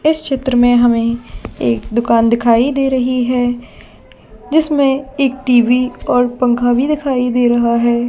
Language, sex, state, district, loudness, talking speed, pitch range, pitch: Hindi, female, Jharkhand, Jamtara, -14 LUFS, 155 wpm, 240-270 Hz, 245 Hz